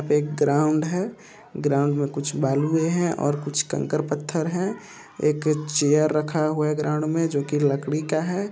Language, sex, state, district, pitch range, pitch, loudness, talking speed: Hindi, male, Bihar, Purnia, 145-160 Hz, 150 Hz, -23 LUFS, 190 wpm